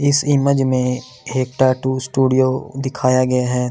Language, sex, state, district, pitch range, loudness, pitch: Hindi, male, Delhi, New Delhi, 125-135 Hz, -18 LUFS, 130 Hz